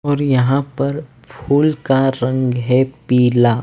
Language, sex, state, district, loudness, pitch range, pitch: Hindi, male, Delhi, New Delhi, -16 LUFS, 125-140 Hz, 130 Hz